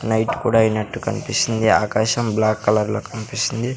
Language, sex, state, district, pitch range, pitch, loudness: Telugu, male, Andhra Pradesh, Sri Satya Sai, 110-115 Hz, 110 Hz, -19 LUFS